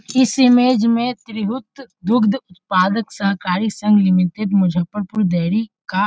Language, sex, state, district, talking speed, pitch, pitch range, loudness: Hindi, male, Bihar, Muzaffarpur, 130 wpm, 210 Hz, 185-240 Hz, -17 LUFS